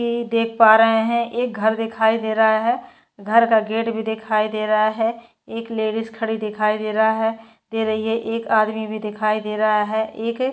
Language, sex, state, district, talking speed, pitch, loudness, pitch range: Hindi, female, Uttar Pradesh, Jyotiba Phule Nagar, 200 wpm, 220 Hz, -20 LUFS, 215-230 Hz